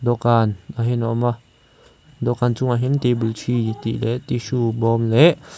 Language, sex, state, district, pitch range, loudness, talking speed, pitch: Mizo, male, Mizoram, Aizawl, 115-120 Hz, -20 LUFS, 160 wpm, 120 Hz